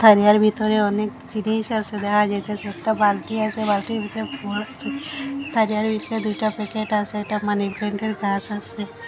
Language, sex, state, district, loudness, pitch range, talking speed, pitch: Bengali, female, Assam, Hailakandi, -22 LUFS, 205-220 Hz, 165 wpm, 215 Hz